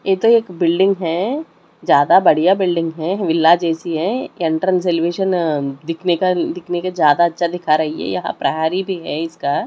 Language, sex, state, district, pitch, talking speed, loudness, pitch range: Hindi, male, Delhi, New Delhi, 175 Hz, 175 wpm, -17 LUFS, 165-185 Hz